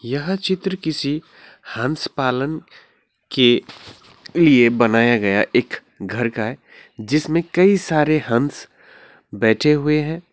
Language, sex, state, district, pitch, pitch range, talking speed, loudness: Hindi, male, West Bengal, Alipurduar, 145 Hz, 120-160 Hz, 115 wpm, -18 LUFS